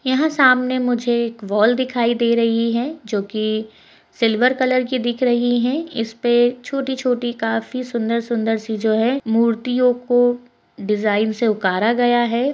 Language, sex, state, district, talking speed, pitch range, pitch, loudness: Hindi, female, Bihar, Begusarai, 145 wpm, 225-250 Hz, 240 Hz, -19 LUFS